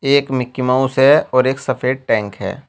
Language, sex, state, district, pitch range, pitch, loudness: Hindi, male, Uttar Pradesh, Shamli, 125-135 Hz, 130 Hz, -16 LUFS